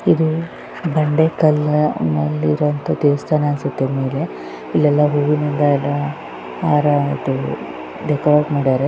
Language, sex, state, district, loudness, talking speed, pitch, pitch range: Kannada, female, Karnataka, Raichur, -18 LUFS, 80 wpm, 145 Hz, 130-150 Hz